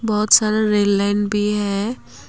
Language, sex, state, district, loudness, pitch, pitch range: Hindi, female, Assam, Kamrup Metropolitan, -17 LUFS, 210 Hz, 205-215 Hz